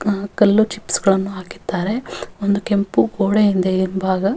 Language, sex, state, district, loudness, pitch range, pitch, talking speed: Kannada, female, Karnataka, Bellary, -18 LUFS, 190-210 Hz, 200 Hz, 135 wpm